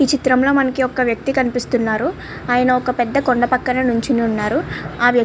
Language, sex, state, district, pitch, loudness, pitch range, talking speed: Telugu, female, Andhra Pradesh, Srikakulam, 250 Hz, -17 LUFS, 240-265 Hz, 185 wpm